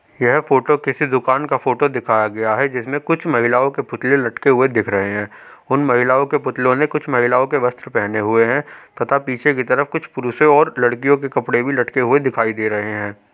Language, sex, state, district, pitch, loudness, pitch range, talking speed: Hindi, male, Uttar Pradesh, Hamirpur, 130 Hz, -17 LUFS, 110-140 Hz, 210 wpm